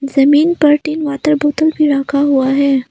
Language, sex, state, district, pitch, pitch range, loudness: Hindi, female, Arunachal Pradesh, Lower Dibang Valley, 290 Hz, 275-300 Hz, -13 LUFS